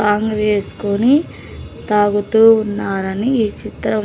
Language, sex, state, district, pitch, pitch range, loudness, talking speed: Telugu, female, Andhra Pradesh, Sri Satya Sai, 210 Hz, 205-220 Hz, -16 LUFS, 90 wpm